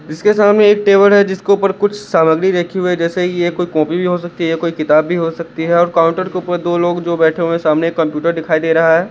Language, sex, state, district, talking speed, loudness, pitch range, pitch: Hindi, male, Chandigarh, Chandigarh, 270 wpm, -14 LUFS, 165-185 Hz, 175 Hz